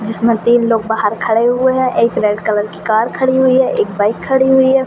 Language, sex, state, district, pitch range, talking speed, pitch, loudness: Hindi, female, Jharkhand, Sahebganj, 220-260 Hz, 245 wpm, 230 Hz, -13 LUFS